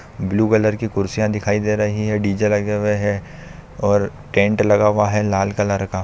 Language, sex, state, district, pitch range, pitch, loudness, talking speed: Hindi, male, Andhra Pradesh, Chittoor, 100-105 Hz, 105 Hz, -18 LUFS, 210 wpm